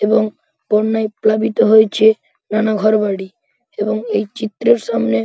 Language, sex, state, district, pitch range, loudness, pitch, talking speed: Bengali, male, West Bengal, Paschim Medinipur, 210-220 Hz, -16 LUFS, 215 Hz, 135 wpm